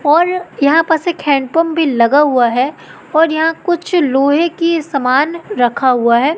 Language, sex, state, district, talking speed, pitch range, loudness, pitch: Hindi, female, Madhya Pradesh, Katni, 170 wpm, 270-330 Hz, -13 LUFS, 305 Hz